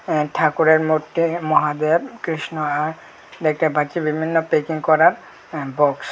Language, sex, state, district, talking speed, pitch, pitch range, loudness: Bengali, male, Tripura, Unakoti, 135 wpm, 155 Hz, 150-160 Hz, -19 LUFS